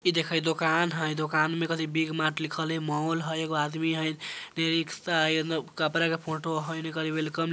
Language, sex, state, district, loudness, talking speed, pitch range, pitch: Bajjika, female, Bihar, Vaishali, -28 LUFS, 215 wpm, 155-165 Hz, 160 Hz